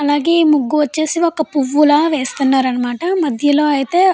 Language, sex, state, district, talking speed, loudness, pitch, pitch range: Telugu, female, Andhra Pradesh, Anantapur, 145 wpm, -15 LUFS, 295 Hz, 275-320 Hz